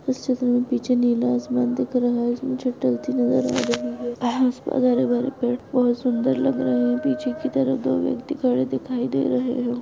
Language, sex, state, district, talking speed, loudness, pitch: Hindi, female, Goa, North and South Goa, 190 wpm, -22 LUFS, 240 Hz